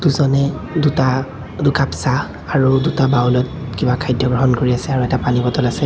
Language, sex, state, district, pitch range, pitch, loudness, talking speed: Assamese, male, Assam, Kamrup Metropolitan, 125-140 Hz, 130 Hz, -17 LUFS, 175 wpm